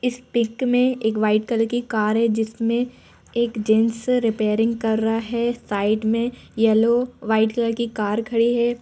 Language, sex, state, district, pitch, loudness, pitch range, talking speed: Hindi, female, Uttar Pradesh, Jalaun, 230 Hz, -21 LUFS, 220-240 Hz, 170 wpm